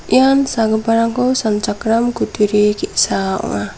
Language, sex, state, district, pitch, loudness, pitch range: Garo, female, Meghalaya, South Garo Hills, 225 Hz, -16 LUFS, 210-240 Hz